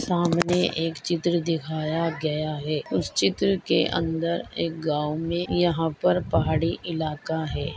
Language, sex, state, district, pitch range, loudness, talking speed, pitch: Hindi, female, Maharashtra, Chandrapur, 155-170 Hz, -25 LUFS, 140 wpm, 160 Hz